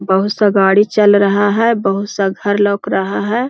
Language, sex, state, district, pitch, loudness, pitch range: Hindi, female, Bihar, Jahanabad, 205 Hz, -13 LUFS, 195-210 Hz